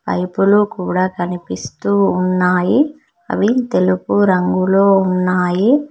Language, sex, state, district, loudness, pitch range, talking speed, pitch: Telugu, female, Telangana, Mahabubabad, -15 LUFS, 180-210 Hz, 90 wpm, 190 Hz